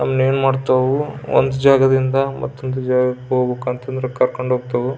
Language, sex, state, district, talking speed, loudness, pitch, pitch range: Kannada, male, Karnataka, Belgaum, 145 wpm, -18 LUFS, 130 Hz, 125-135 Hz